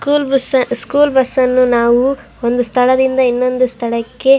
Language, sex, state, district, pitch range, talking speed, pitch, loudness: Kannada, female, Karnataka, Raichur, 245-265 Hz, 135 wpm, 255 Hz, -14 LUFS